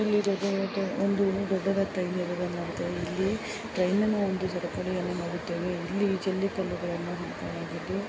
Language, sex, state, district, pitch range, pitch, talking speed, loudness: Kannada, female, Karnataka, Dharwad, 180-200 Hz, 190 Hz, 125 wpm, -30 LUFS